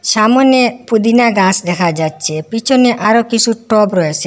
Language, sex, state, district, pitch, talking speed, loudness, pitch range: Bengali, female, Assam, Hailakandi, 220 Hz, 140 wpm, -12 LUFS, 180-235 Hz